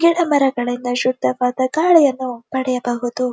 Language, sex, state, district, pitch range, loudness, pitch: Kannada, female, Karnataka, Dharwad, 245-280 Hz, -18 LUFS, 255 Hz